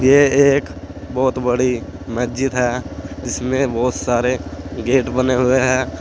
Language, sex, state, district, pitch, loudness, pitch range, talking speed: Hindi, male, Uttar Pradesh, Saharanpur, 125 Hz, -18 LUFS, 95-130 Hz, 130 wpm